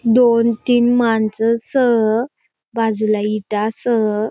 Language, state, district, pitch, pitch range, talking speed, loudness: Bhili, Maharashtra, Dhule, 225 Hz, 215-240 Hz, 110 wpm, -16 LUFS